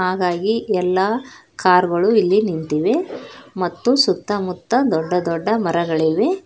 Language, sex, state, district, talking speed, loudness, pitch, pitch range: Kannada, female, Karnataka, Bangalore, 100 wpm, -18 LUFS, 190 Hz, 175-230 Hz